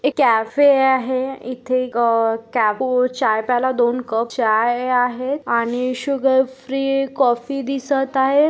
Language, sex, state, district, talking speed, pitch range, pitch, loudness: Hindi, female, Maharashtra, Aurangabad, 125 wpm, 240-270 Hz, 255 Hz, -18 LUFS